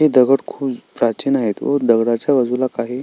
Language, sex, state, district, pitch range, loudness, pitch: Marathi, male, Maharashtra, Sindhudurg, 120-140 Hz, -17 LUFS, 130 Hz